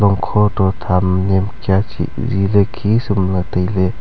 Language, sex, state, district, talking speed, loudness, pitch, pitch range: Wancho, male, Arunachal Pradesh, Longding, 165 wpm, -16 LUFS, 95 Hz, 90-105 Hz